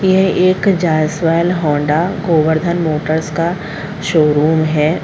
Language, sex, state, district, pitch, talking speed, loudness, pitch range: Hindi, female, Uttar Pradesh, Jalaun, 160 Hz, 105 wpm, -14 LUFS, 155-180 Hz